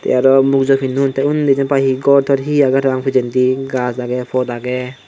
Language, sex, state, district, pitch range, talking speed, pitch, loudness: Chakma, male, Tripura, Dhalai, 125-135 Hz, 225 wpm, 135 Hz, -15 LUFS